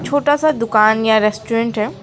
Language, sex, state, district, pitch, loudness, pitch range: Hindi, female, West Bengal, Alipurduar, 225 Hz, -15 LUFS, 215-285 Hz